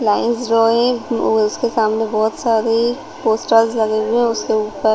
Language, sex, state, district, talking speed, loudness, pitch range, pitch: Hindi, female, Chhattisgarh, Rajnandgaon, 155 wpm, -17 LUFS, 220-235 Hz, 225 Hz